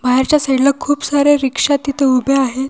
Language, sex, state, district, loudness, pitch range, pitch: Marathi, female, Maharashtra, Washim, -14 LUFS, 265-285 Hz, 275 Hz